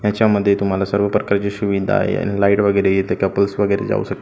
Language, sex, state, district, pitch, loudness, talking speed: Marathi, male, Maharashtra, Gondia, 100 Hz, -17 LUFS, 215 wpm